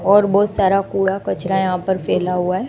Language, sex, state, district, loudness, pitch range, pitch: Hindi, female, Gujarat, Gandhinagar, -18 LUFS, 185-200 Hz, 190 Hz